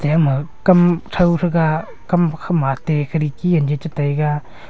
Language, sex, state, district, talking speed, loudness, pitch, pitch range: Wancho, male, Arunachal Pradesh, Longding, 140 wpm, -18 LUFS, 155 Hz, 150-170 Hz